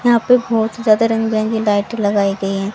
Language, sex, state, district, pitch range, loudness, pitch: Hindi, female, Haryana, Rohtak, 205-230 Hz, -16 LUFS, 220 Hz